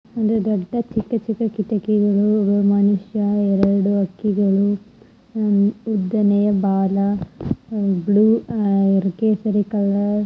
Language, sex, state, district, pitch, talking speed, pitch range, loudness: Kannada, female, Karnataka, Chamarajanagar, 205 Hz, 90 wpm, 200-215 Hz, -19 LUFS